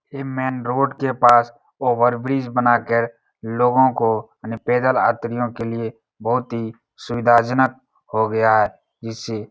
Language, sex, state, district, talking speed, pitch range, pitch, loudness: Hindi, male, Uttar Pradesh, Etah, 150 wpm, 115-130 Hz, 120 Hz, -19 LUFS